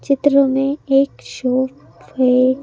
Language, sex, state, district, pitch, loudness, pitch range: Hindi, female, Madhya Pradesh, Bhopal, 270 Hz, -17 LUFS, 255-275 Hz